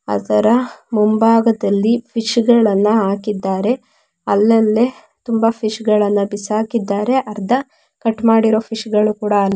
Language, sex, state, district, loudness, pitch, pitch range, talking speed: Kannada, female, Karnataka, Mysore, -16 LUFS, 220 Hz, 205-230 Hz, 90 wpm